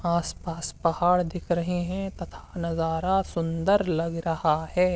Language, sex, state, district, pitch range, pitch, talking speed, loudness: Hindi, male, Uttar Pradesh, Hamirpur, 165-180 Hz, 170 Hz, 135 wpm, -26 LUFS